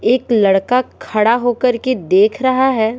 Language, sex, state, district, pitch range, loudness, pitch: Hindi, female, Bihar, Patna, 215-250 Hz, -15 LUFS, 240 Hz